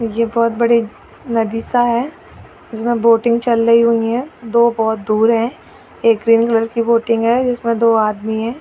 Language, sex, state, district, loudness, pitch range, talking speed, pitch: Hindi, female, Chhattisgarh, Raigarh, -15 LUFS, 225-235 Hz, 190 wpm, 230 Hz